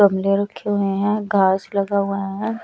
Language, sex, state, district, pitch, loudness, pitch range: Hindi, female, Chandigarh, Chandigarh, 200 Hz, -20 LUFS, 195-205 Hz